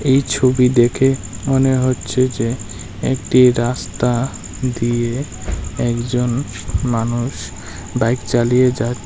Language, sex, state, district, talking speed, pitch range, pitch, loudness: Bengali, male, Tripura, West Tripura, 95 wpm, 115-130 Hz, 120 Hz, -17 LUFS